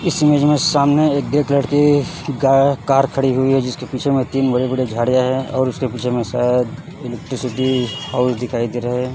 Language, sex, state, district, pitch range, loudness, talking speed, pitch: Hindi, male, Chhattisgarh, Raipur, 125-140 Hz, -17 LUFS, 205 wpm, 130 Hz